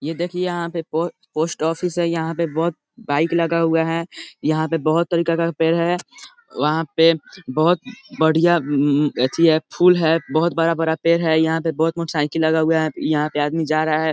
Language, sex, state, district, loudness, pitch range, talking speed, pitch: Hindi, male, Bihar, East Champaran, -19 LUFS, 160-170 Hz, 200 wpm, 165 Hz